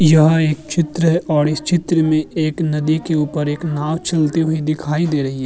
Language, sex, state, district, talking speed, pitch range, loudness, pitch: Hindi, male, Uttar Pradesh, Jyotiba Phule Nagar, 220 wpm, 150-165 Hz, -17 LUFS, 155 Hz